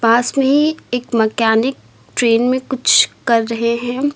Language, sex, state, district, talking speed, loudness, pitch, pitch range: Hindi, female, Uttar Pradesh, Lucknow, 160 wpm, -15 LUFS, 245 Hz, 230-265 Hz